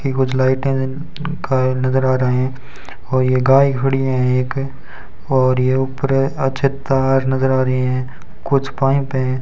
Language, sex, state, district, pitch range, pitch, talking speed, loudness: Hindi, male, Rajasthan, Bikaner, 130-135 Hz, 130 Hz, 180 wpm, -17 LUFS